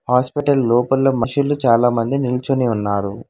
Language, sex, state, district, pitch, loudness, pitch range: Telugu, male, Telangana, Hyderabad, 125 Hz, -17 LUFS, 115-135 Hz